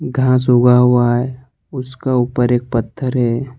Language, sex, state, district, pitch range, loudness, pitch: Hindi, male, Jharkhand, Ranchi, 120-130 Hz, -15 LUFS, 125 Hz